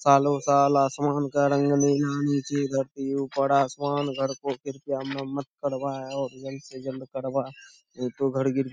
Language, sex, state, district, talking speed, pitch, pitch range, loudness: Hindi, male, Bihar, Saharsa, 165 wpm, 140 Hz, 135-140 Hz, -26 LUFS